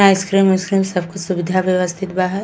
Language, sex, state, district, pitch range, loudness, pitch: Bhojpuri, female, Uttar Pradesh, Gorakhpur, 185-195 Hz, -17 LUFS, 185 Hz